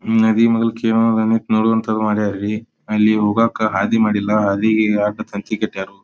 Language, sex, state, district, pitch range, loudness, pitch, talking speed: Kannada, male, Karnataka, Dharwad, 105-115 Hz, -17 LUFS, 110 Hz, 100 wpm